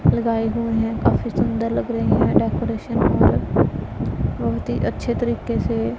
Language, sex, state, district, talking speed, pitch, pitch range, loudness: Hindi, female, Punjab, Pathankot, 150 wpm, 225 Hz, 150-230 Hz, -21 LUFS